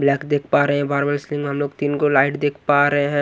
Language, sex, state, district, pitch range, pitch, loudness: Hindi, male, Odisha, Nuapada, 140-145 Hz, 145 Hz, -19 LUFS